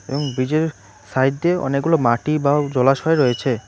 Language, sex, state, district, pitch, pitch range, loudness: Bengali, male, West Bengal, Cooch Behar, 140 Hz, 130-150 Hz, -19 LUFS